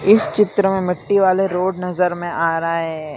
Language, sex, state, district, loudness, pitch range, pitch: Hindi, male, Gujarat, Valsad, -18 LUFS, 165-195 Hz, 180 Hz